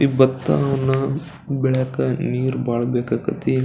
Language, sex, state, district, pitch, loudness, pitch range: Kannada, male, Karnataka, Belgaum, 130 Hz, -21 LUFS, 125-135 Hz